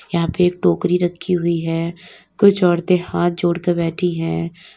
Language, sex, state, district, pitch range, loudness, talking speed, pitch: Hindi, female, Uttar Pradesh, Lalitpur, 170-180 Hz, -18 LUFS, 165 wpm, 175 Hz